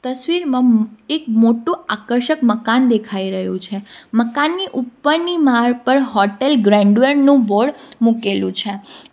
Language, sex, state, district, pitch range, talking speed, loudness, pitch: Gujarati, female, Gujarat, Valsad, 215-280 Hz, 120 wpm, -16 LUFS, 245 Hz